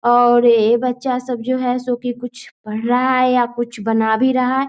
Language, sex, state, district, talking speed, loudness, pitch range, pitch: Hindi, female, Bihar, Muzaffarpur, 230 wpm, -17 LUFS, 240-255 Hz, 245 Hz